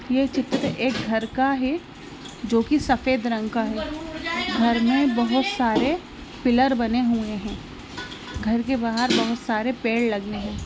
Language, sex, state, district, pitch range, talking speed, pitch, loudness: Hindi, female, Bihar, Muzaffarpur, 230-265 Hz, 160 wpm, 245 Hz, -23 LUFS